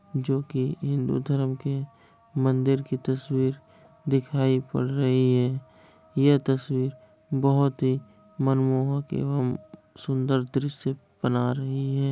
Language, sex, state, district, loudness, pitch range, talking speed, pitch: Hindi, male, Bihar, Kishanganj, -26 LUFS, 130-140 Hz, 115 wpm, 135 Hz